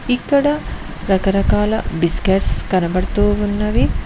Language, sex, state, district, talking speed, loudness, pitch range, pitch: Telugu, female, Telangana, Mahabubabad, 75 wpm, -17 LUFS, 190-215 Hz, 205 Hz